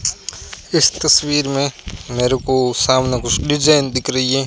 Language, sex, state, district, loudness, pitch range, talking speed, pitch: Hindi, male, Rajasthan, Barmer, -16 LUFS, 125-140 Hz, 150 wpm, 130 Hz